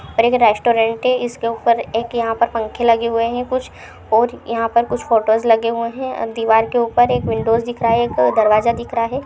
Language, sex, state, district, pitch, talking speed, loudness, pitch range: Hindi, female, Chhattisgarh, Balrampur, 230 Hz, 215 wpm, -17 LUFS, 225-240 Hz